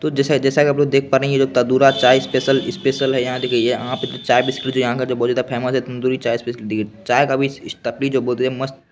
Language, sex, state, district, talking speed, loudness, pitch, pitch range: Hindi, male, Bihar, Begusarai, 270 wpm, -18 LUFS, 130 Hz, 125-135 Hz